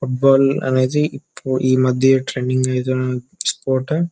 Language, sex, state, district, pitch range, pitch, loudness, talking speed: Telugu, male, Telangana, Nalgonda, 130-135 Hz, 130 Hz, -18 LUFS, 115 wpm